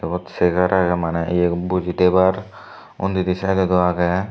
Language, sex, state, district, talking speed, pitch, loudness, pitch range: Chakma, male, Tripura, Dhalai, 165 wpm, 90 Hz, -19 LUFS, 90-95 Hz